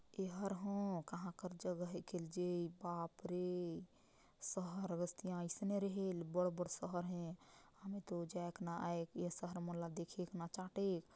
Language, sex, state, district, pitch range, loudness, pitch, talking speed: Chhattisgarhi, female, Chhattisgarh, Jashpur, 175-190 Hz, -45 LUFS, 180 Hz, 140 wpm